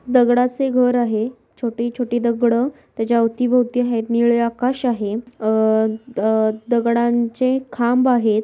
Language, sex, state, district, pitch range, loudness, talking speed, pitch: Marathi, female, Maharashtra, Aurangabad, 230-250 Hz, -19 LUFS, 130 wpm, 235 Hz